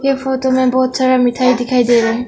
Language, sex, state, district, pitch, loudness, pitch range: Hindi, female, Arunachal Pradesh, Longding, 255 Hz, -14 LUFS, 245-260 Hz